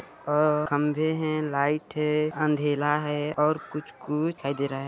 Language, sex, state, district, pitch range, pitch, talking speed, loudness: Hindi, male, Chhattisgarh, Sarguja, 145-155 Hz, 150 Hz, 125 wpm, -26 LUFS